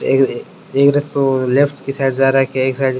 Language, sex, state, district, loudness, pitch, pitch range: Rajasthani, male, Rajasthan, Churu, -16 LUFS, 135 Hz, 130-140 Hz